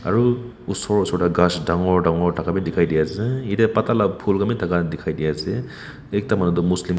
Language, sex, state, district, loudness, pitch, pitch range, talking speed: Nagamese, male, Nagaland, Kohima, -21 LUFS, 90 Hz, 85-105 Hz, 230 wpm